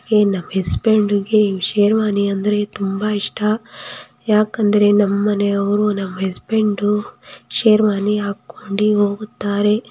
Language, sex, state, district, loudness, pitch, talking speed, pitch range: Kannada, female, Karnataka, Mysore, -17 LUFS, 205 Hz, 95 wpm, 200-210 Hz